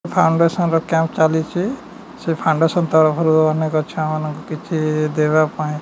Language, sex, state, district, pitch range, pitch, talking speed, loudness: Odia, male, Odisha, Nuapada, 155-165 Hz, 160 Hz, 145 wpm, -18 LUFS